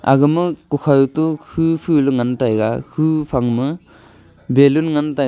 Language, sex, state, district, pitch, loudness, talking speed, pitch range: Wancho, male, Arunachal Pradesh, Longding, 140 Hz, -17 LUFS, 180 wpm, 125-155 Hz